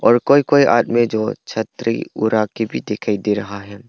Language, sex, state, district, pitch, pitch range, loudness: Hindi, male, Arunachal Pradesh, Papum Pare, 110 Hz, 105-120 Hz, -18 LUFS